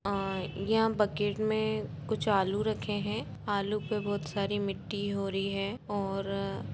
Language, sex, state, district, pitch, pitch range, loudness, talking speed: Hindi, female, Bihar, Sitamarhi, 200 Hz, 195-210 Hz, -32 LUFS, 150 wpm